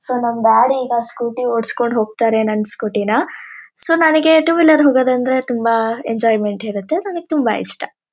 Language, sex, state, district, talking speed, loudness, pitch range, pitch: Kannada, female, Karnataka, Shimoga, 155 wpm, -15 LUFS, 225-305 Hz, 240 Hz